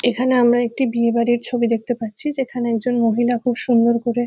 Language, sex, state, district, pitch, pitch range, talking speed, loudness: Bengali, female, West Bengal, Kolkata, 240 Hz, 235-245 Hz, 210 wpm, -19 LUFS